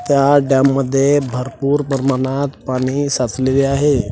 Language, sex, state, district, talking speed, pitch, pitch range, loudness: Marathi, male, Maharashtra, Washim, 115 wpm, 135 Hz, 130-140 Hz, -16 LUFS